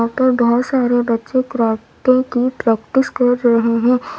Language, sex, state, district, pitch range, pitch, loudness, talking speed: Hindi, female, Uttar Pradesh, Lalitpur, 230-255 Hz, 245 Hz, -16 LUFS, 145 wpm